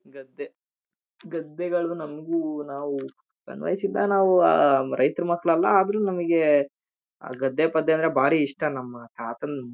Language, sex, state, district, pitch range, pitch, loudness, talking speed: Kannada, male, Karnataka, Shimoga, 140-175 Hz, 160 Hz, -24 LUFS, 135 wpm